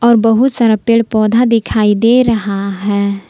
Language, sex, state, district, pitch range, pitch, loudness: Hindi, female, Jharkhand, Palamu, 205-235 Hz, 225 Hz, -12 LUFS